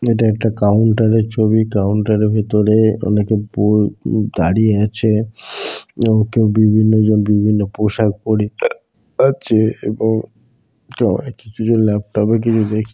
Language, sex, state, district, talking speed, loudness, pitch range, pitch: Bengali, male, West Bengal, Dakshin Dinajpur, 120 wpm, -15 LUFS, 105-110 Hz, 110 Hz